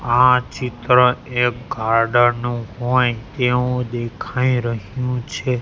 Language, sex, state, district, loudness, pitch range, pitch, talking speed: Gujarati, male, Gujarat, Gandhinagar, -19 LUFS, 120-125 Hz, 125 Hz, 105 wpm